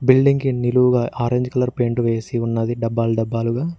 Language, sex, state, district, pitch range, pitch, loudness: Telugu, male, Telangana, Mahabubabad, 115-125 Hz, 120 Hz, -19 LUFS